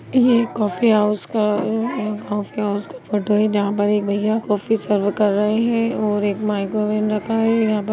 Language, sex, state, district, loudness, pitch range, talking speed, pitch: Hindi, female, Bihar, Begusarai, -19 LUFS, 205-220 Hz, 205 wpm, 210 Hz